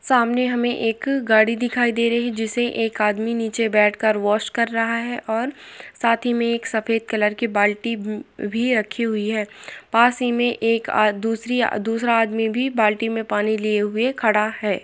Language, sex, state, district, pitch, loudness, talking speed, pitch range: Hindi, female, Uttar Pradesh, Etah, 225 Hz, -20 LUFS, 180 wpm, 215-240 Hz